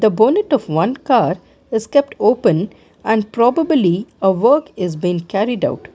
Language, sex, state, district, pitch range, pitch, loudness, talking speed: English, female, Karnataka, Bangalore, 190-280 Hz, 220 Hz, -16 LUFS, 140 wpm